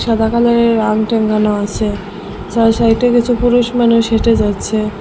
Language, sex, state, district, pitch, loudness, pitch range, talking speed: Bengali, female, Assam, Hailakandi, 225 Hz, -13 LUFS, 215-235 Hz, 130 wpm